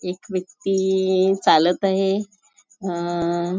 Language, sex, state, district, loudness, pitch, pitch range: Marathi, female, Maharashtra, Nagpur, -21 LUFS, 190 Hz, 175-195 Hz